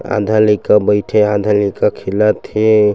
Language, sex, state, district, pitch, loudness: Chhattisgarhi, male, Chhattisgarh, Sukma, 105 Hz, -14 LUFS